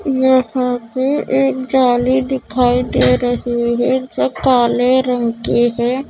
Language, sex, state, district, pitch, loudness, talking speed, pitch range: Hindi, female, Maharashtra, Mumbai Suburban, 250 Hz, -15 LUFS, 130 wpm, 245-260 Hz